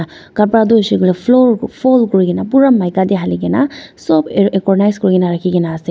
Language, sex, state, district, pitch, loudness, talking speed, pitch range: Nagamese, female, Nagaland, Dimapur, 195 Hz, -13 LUFS, 185 wpm, 180-230 Hz